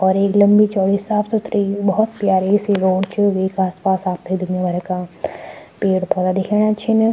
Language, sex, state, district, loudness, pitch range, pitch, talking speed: Garhwali, female, Uttarakhand, Tehri Garhwal, -18 LUFS, 185-210 Hz, 195 Hz, 185 wpm